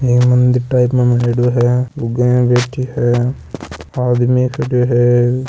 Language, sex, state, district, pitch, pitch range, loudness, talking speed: Marwari, male, Rajasthan, Nagaur, 125 Hz, 120-125 Hz, -14 LUFS, 130 wpm